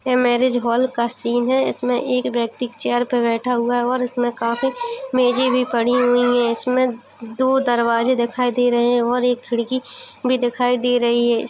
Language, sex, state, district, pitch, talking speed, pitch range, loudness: Hindi, female, Uttar Pradesh, Jalaun, 245 Hz, 200 wpm, 240-255 Hz, -19 LUFS